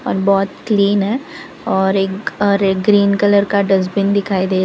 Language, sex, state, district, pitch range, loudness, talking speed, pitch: Hindi, female, Gujarat, Valsad, 195-205 Hz, -15 LUFS, 180 wpm, 200 Hz